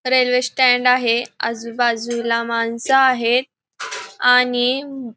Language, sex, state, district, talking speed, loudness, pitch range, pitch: Marathi, female, Maharashtra, Pune, 95 wpm, -17 LUFS, 235-255 Hz, 245 Hz